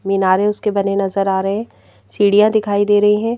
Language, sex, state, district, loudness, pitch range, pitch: Hindi, female, Madhya Pradesh, Bhopal, -16 LUFS, 195-210 Hz, 205 Hz